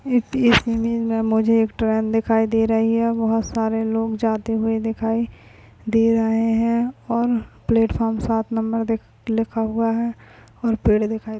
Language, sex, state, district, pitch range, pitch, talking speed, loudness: Hindi, female, Goa, North and South Goa, 225-230 Hz, 225 Hz, 150 wpm, -21 LUFS